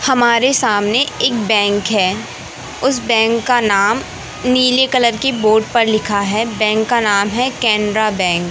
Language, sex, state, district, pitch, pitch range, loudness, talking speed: Hindi, male, Madhya Pradesh, Katni, 225 Hz, 210-250 Hz, -14 LUFS, 160 wpm